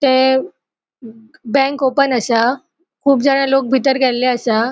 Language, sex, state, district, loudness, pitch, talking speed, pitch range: Konkani, female, Goa, North and South Goa, -15 LUFS, 265 Hz, 125 wpm, 245-275 Hz